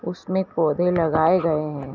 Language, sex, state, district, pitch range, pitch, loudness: Hindi, female, Uttar Pradesh, Hamirpur, 155-180 Hz, 165 Hz, -21 LUFS